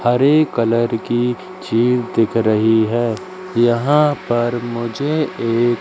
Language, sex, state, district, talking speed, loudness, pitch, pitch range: Hindi, male, Madhya Pradesh, Katni, 115 wpm, -17 LUFS, 120 Hz, 115-140 Hz